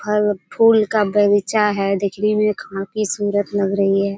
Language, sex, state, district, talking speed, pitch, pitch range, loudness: Hindi, female, Bihar, Kishanganj, 160 wpm, 205 Hz, 195-210 Hz, -18 LUFS